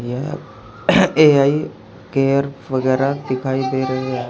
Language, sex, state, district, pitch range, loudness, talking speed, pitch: Hindi, male, Haryana, Charkhi Dadri, 130-140 Hz, -18 LUFS, 100 wpm, 130 Hz